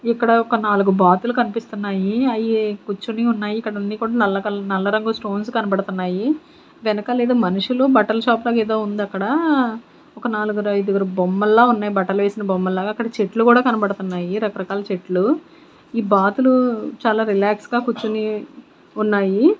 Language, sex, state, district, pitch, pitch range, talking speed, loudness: Telugu, female, Andhra Pradesh, Sri Satya Sai, 215 Hz, 200-235 Hz, 140 wpm, -19 LUFS